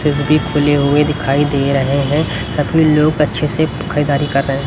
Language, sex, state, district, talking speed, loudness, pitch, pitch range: Hindi, male, Haryana, Rohtak, 195 wpm, -15 LUFS, 145 Hz, 140-150 Hz